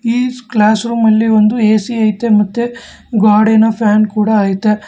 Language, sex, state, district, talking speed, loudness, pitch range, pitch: Kannada, male, Karnataka, Bangalore, 125 wpm, -12 LUFS, 210-230 Hz, 220 Hz